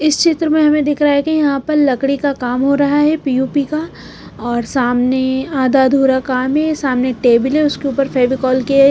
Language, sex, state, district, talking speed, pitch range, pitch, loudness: Hindi, female, Punjab, Pathankot, 210 wpm, 260-295 Hz, 275 Hz, -14 LUFS